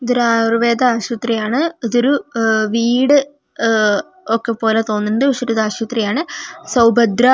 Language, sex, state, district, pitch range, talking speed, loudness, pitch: Malayalam, female, Kerala, Wayanad, 225-255 Hz, 130 wpm, -16 LUFS, 230 Hz